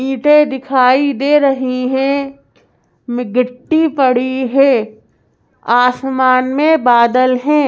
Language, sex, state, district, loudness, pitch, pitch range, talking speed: Hindi, female, Madhya Pradesh, Bhopal, -13 LUFS, 265 Hz, 250-280 Hz, 100 wpm